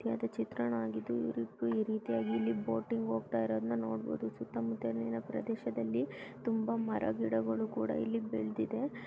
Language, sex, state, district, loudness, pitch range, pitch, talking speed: Kannada, female, Karnataka, Raichur, -36 LUFS, 110-115 Hz, 115 Hz, 140 wpm